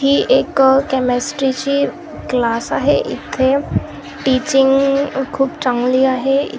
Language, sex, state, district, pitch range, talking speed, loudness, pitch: Marathi, female, Maharashtra, Gondia, 260-275 Hz, 90 wpm, -16 LUFS, 270 Hz